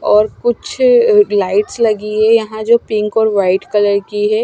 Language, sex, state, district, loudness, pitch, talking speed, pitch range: Hindi, female, Punjab, Kapurthala, -13 LUFS, 215 Hz, 175 wpm, 205-230 Hz